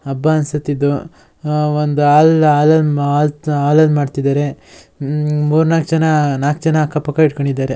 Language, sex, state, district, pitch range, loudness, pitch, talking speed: Kannada, male, Karnataka, Shimoga, 145-155 Hz, -14 LUFS, 150 Hz, 130 wpm